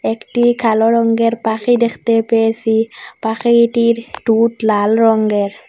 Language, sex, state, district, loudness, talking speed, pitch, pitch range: Bengali, female, Assam, Hailakandi, -14 LUFS, 105 wpm, 225 Hz, 220-235 Hz